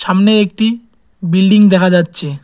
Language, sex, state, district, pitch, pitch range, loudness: Bengali, male, West Bengal, Cooch Behar, 190 Hz, 180-210 Hz, -11 LUFS